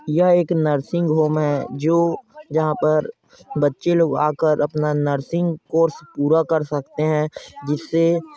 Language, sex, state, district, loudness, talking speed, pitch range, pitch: Hindi, male, Chhattisgarh, Korba, -20 LUFS, 145 wpm, 150-165 Hz, 155 Hz